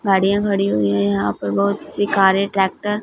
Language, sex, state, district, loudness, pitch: Hindi, female, Punjab, Fazilka, -18 LUFS, 195 Hz